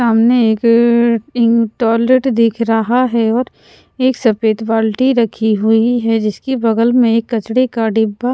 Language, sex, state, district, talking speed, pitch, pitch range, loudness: Hindi, female, Punjab, Pathankot, 165 wpm, 230 Hz, 225-245 Hz, -13 LUFS